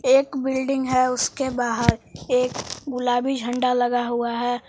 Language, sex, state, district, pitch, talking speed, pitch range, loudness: Hindi, female, Jharkhand, Palamu, 255 Hz, 140 wpm, 245-265 Hz, -22 LUFS